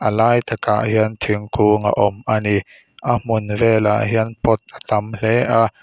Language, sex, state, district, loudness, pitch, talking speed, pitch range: Mizo, male, Mizoram, Aizawl, -18 LUFS, 110 Hz, 175 wpm, 105-115 Hz